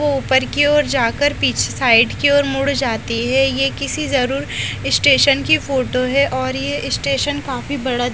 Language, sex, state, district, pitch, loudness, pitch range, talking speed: Hindi, female, Haryana, Charkhi Dadri, 265 Hz, -16 LUFS, 245-280 Hz, 185 wpm